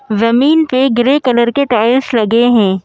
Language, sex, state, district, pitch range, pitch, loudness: Hindi, female, Madhya Pradesh, Bhopal, 230-265 Hz, 240 Hz, -11 LUFS